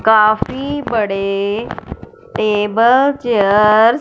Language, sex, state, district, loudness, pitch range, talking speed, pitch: Hindi, female, Punjab, Fazilka, -14 LUFS, 210-245 Hz, 75 wpm, 220 Hz